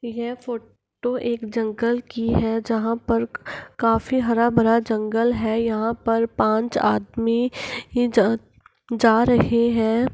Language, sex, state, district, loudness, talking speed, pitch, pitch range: Hindi, female, Bihar, Gopalganj, -21 LUFS, 140 wpm, 230 Hz, 225-240 Hz